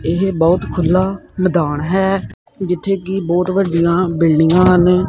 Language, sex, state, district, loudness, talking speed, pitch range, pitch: Punjabi, male, Punjab, Kapurthala, -15 LUFS, 130 wpm, 170-190 Hz, 180 Hz